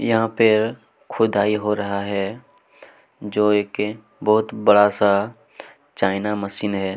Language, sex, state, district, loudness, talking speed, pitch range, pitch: Hindi, male, Chhattisgarh, Kabirdham, -20 LUFS, 120 wpm, 100-110 Hz, 105 Hz